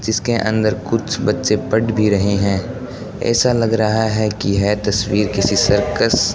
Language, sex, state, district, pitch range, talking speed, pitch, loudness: Hindi, male, Rajasthan, Bikaner, 105-115 Hz, 170 wpm, 110 Hz, -17 LUFS